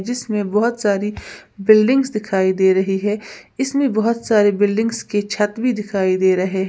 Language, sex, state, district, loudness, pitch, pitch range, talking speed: Hindi, female, Uttar Pradesh, Lalitpur, -18 LUFS, 210 Hz, 195-225 Hz, 170 wpm